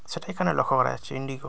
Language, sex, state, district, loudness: Bengali, male, West Bengal, Dakshin Dinajpur, -26 LUFS